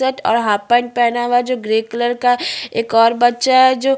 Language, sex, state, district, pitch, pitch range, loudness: Hindi, female, Chhattisgarh, Bastar, 240 Hz, 230-255 Hz, -15 LUFS